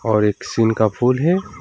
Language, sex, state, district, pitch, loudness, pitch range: Hindi, male, West Bengal, Alipurduar, 115 Hz, -18 LUFS, 110-135 Hz